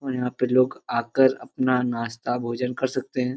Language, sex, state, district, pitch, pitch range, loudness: Hindi, male, Jharkhand, Jamtara, 125 Hz, 120-130 Hz, -24 LUFS